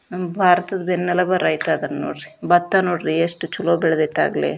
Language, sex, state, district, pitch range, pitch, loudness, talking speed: Kannada, female, Karnataka, Dharwad, 165-180 Hz, 175 Hz, -19 LUFS, 155 wpm